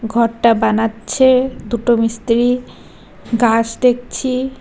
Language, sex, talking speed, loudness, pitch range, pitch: Bengali, female, 80 wpm, -16 LUFS, 225-255 Hz, 235 Hz